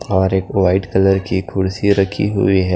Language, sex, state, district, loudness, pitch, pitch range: Hindi, male, Maharashtra, Washim, -16 LUFS, 95 Hz, 95-100 Hz